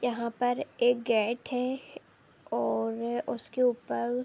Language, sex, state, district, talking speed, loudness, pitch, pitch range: Hindi, female, Bihar, Saharsa, 125 wpm, -30 LUFS, 240 Hz, 225-245 Hz